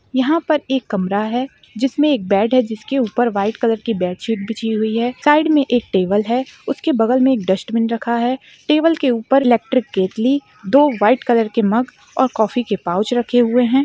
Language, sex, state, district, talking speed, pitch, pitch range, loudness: Hindi, female, Jharkhand, Sahebganj, 215 wpm, 240 Hz, 220-265 Hz, -17 LUFS